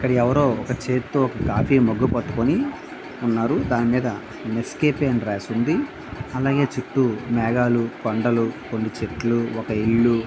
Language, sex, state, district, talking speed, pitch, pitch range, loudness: Telugu, male, Andhra Pradesh, Visakhapatnam, 135 wpm, 120 Hz, 115-130 Hz, -22 LUFS